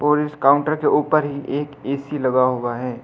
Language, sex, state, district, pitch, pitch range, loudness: Hindi, male, Delhi, New Delhi, 145 Hz, 130-150 Hz, -20 LUFS